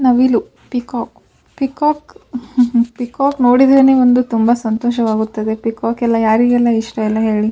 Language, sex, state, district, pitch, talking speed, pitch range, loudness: Kannada, female, Karnataka, Bijapur, 240 Hz, 120 wpm, 225-250 Hz, -14 LUFS